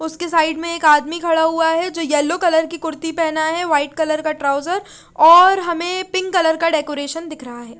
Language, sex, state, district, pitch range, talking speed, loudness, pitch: Hindi, female, Chandigarh, Chandigarh, 310-340 Hz, 215 wpm, -17 LUFS, 325 Hz